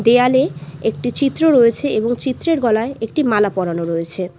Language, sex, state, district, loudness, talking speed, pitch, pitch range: Bengali, female, West Bengal, Alipurduar, -17 LUFS, 150 wpm, 230 Hz, 190-260 Hz